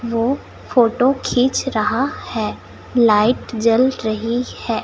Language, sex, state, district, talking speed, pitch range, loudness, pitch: Hindi, female, Chhattisgarh, Raipur, 110 wpm, 225-255 Hz, -18 LUFS, 240 Hz